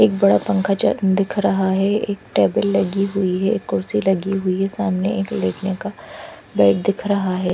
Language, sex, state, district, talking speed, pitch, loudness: Hindi, female, Punjab, Fazilka, 190 wpm, 190 Hz, -19 LUFS